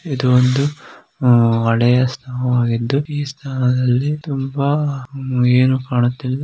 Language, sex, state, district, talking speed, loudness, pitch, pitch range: Kannada, male, Karnataka, Dharwad, 75 wpm, -17 LUFS, 130 Hz, 125-140 Hz